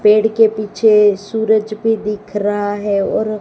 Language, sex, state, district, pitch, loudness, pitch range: Hindi, female, Gujarat, Gandhinagar, 210 Hz, -15 LUFS, 205-220 Hz